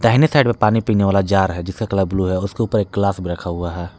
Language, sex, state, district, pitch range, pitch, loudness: Hindi, male, Jharkhand, Palamu, 95-110 Hz, 100 Hz, -18 LUFS